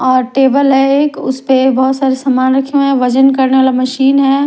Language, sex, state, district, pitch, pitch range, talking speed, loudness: Hindi, female, Odisha, Nuapada, 265 Hz, 260-275 Hz, 200 wpm, -11 LUFS